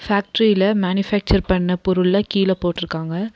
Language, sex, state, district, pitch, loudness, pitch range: Tamil, female, Tamil Nadu, Nilgiris, 190 Hz, -19 LUFS, 180-200 Hz